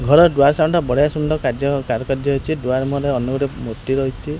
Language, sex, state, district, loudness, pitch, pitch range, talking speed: Odia, male, Odisha, Khordha, -18 LUFS, 140 Hz, 130-150 Hz, 220 wpm